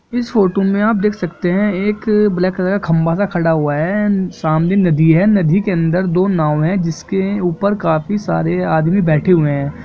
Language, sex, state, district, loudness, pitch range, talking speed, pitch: Hindi, male, Jharkhand, Jamtara, -15 LUFS, 165-200 Hz, 205 wpm, 185 Hz